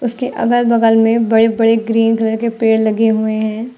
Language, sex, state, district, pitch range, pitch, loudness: Hindi, female, Uttar Pradesh, Lucknow, 225-230 Hz, 225 Hz, -14 LUFS